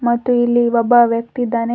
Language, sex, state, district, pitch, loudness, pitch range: Kannada, female, Karnataka, Bidar, 240 Hz, -15 LUFS, 235-240 Hz